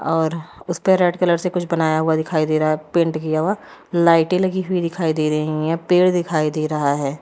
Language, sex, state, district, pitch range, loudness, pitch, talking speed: Hindi, female, Uttar Pradesh, Lalitpur, 155-175 Hz, -19 LUFS, 165 Hz, 225 wpm